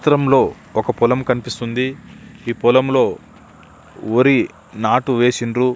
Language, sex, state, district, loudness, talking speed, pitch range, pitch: Telugu, male, Andhra Pradesh, Visakhapatnam, -17 LUFS, 105 wpm, 120-135 Hz, 125 Hz